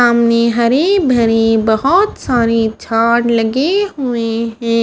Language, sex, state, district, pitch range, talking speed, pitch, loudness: Hindi, female, Haryana, Charkhi Dadri, 230-260 Hz, 110 wpm, 235 Hz, -13 LUFS